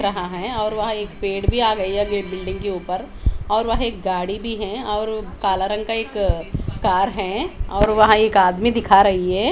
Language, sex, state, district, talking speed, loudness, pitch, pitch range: Hindi, female, Haryana, Charkhi Dadri, 200 wpm, -20 LUFS, 205 Hz, 195-215 Hz